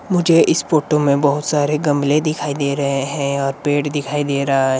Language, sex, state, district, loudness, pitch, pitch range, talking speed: Hindi, male, Himachal Pradesh, Shimla, -17 LUFS, 145 Hz, 140-150 Hz, 210 wpm